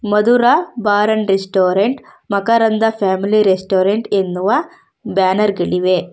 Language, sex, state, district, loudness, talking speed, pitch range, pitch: Kannada, female, Karnataka, Bangalore, -15 LUFS, 100 wpm, 190-225 Hz, 205 Hz